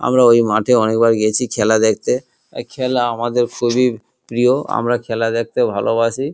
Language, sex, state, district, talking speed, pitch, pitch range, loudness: Bengali, male, West Bengal, Kolkata, 140 wpm, 120 Hz, 115-125 Hz, -16 LUFS